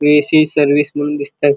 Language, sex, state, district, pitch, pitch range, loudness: Marathi, male, Maharashtra, Chandrapur, 145 Hz, 145-150 Hz, -14 LUFS